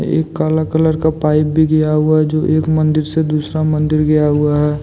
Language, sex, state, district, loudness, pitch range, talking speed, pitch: Hindi, male, Jharkhand, Deoghar, -14 LUFS, 150-155 Hz, 225 wpm, 155 Hz